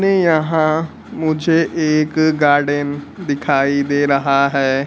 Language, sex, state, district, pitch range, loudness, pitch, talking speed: Hindi, male, Bihar, Kaimur, 140-160 Hz, -16 LUFS, 150 Hz, 110 wpm